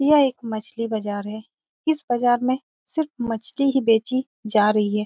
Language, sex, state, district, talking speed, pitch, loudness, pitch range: Hindi, female, Bihar, Saran, 180 wpm, 240 Hz, -23 LUFS, 220-265 Hz